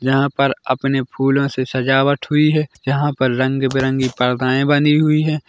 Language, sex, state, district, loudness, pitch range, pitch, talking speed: Hindi, male, Chhattisgarh, Bilaspur, -17 LUFS, 130-145 Hz, 135 Hz, 165 wpm